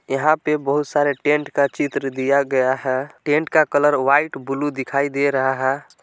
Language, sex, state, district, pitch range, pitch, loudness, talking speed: Hindi, male, Jharkhand, Palamu, 135-150 Hz, 140 Hz, -19 LUFS, 180 wpm